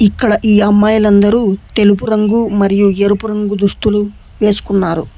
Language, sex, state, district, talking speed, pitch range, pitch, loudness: Telugu, male, Telangana, Hyderabad, 115 wpm, 200-215 Hz, 205 Hz, -12 LUFS